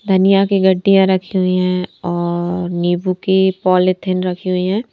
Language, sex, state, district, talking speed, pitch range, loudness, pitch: Hindi, female, Punjab, Kapurthala, 160 wpm, 180-190 Hz, -15 LUFS, 185 Hz